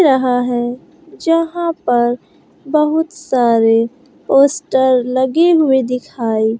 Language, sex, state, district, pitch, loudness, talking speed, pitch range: Hindi, female, Bihar, West Champaran, 265 Hz, -15 LUFS, 100 wpm, 245-320 Hz